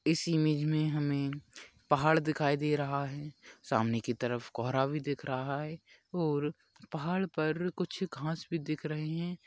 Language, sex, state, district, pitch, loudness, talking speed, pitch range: Hindi, male, Rajasthan, Churu, 150 Hz, -33 LUFS, 165 wpm, 140-160 Hz